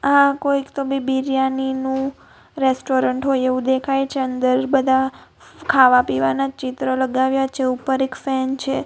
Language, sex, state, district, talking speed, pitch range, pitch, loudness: Gujarati, female, Gujarat, Valsad, 150 wpm, 260-270 Hz, 265 Hz, -19 LUFS